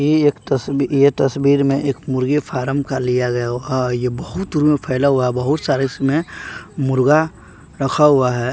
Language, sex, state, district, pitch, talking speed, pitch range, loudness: Hindi, male, Bihar, West Champaran, 135 Hz, 170 wpm, 130-145 Hz, -17 LUFS